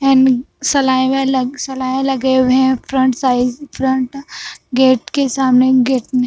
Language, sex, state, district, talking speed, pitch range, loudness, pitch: Hindi, female, Punjab, Fazilka, 155 wpm, 255-270 Hz, -15 LUFS, 260 Hz